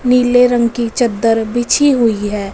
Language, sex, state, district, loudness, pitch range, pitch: Hindi, female, Punjab, Fazilka, -13 LUFS, 225-245 Hz, 240 Hz